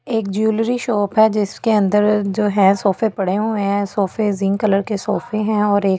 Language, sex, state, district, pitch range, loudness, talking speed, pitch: Hindi, female, Delhi, New Delhi, 200-215 Hz, -18 LUFS, 200 wpm, 210 Hz